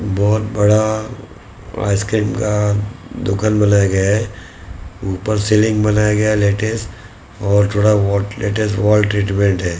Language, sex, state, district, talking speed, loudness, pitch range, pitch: Hindi, male, Maharashtra, Mumbai Suburban, 130 wpm, -16 LUFS, 100-110 Hz, 105 Hz